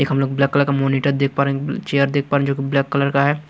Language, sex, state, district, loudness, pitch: Hindi, male, Chhattisgarh, Raipur, -19 LUFS, 140 Hz